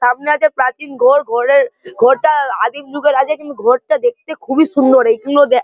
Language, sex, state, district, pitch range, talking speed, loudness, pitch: Bengali, male, West Bengal, Malda, 255-300 Hz, 180 wpm, -14 LUFS, 280 Hz